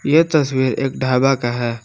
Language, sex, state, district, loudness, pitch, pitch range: Hindi, male, Jharkhand, Palamu, -17 LUFS, 130 Hz, 120-140 Hz